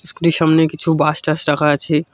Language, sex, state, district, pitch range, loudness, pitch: Bengali, male, West Bengal, Cooch Behar, 150-165 Hz, -16 LUFS, 160 Hz